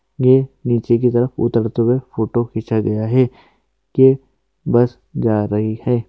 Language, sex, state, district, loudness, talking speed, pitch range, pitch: Hindi, male, Uttarakhand, Uttarkashi, -17 LUFS, 150 wpm, 110-125 Hz, 120 Hz